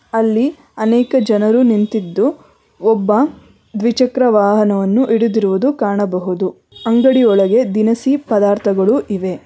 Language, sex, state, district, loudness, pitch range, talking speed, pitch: Kannada, female, Karnataka, Bangalore, -14 LUFS, 205-245 Hz, 90 wpm, 220 Hz